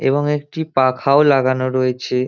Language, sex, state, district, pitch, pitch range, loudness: Bengali, male, West Bengal, Dakshin Dinajpur, 130 Hz, 130-145 Hz, -17 LUFS